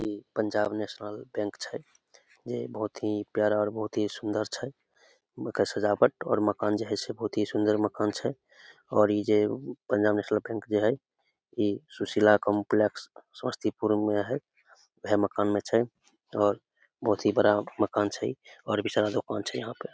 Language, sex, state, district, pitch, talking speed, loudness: Maithili, male, Bihar, Samastipur, 105 Hz, 170 wpm, -28 LUFS